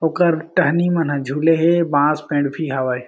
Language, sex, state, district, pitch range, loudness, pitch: Chhattisgarhi, male, Chhattisgarh, Jashpur, 145-170 Hz, -18 LUFS, 155 Hz